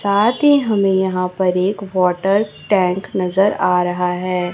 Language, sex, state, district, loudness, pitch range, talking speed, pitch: Hindi, male, Chhattisgarh, Raipur, -17 LUFS, 180-200 Hz, 160 wpm, 190 Hz